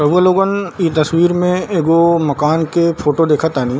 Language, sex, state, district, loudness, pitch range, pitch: Hindi, male, Bihar, Darbhanga, -14 LUFS, 155-180 Hz, 165 Hz